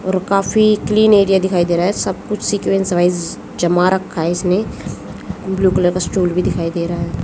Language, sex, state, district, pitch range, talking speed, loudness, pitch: Hindi, female, Haryana, Jhajjar, 175-195 Hz, 205 wpm, -16 LUFS, 185 Hz